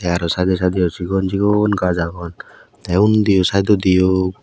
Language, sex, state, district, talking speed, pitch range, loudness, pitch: Chakma, male, Tripura, West Tripura, 175 wpm, 90-100 Hz, -16 LUFS, 95 Hz